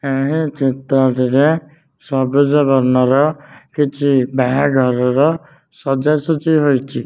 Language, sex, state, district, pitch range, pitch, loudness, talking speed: Odia, male, Odisha, Nuapada, 130-150 Hz, 140 Hz, -15 LUFS, 75 wpm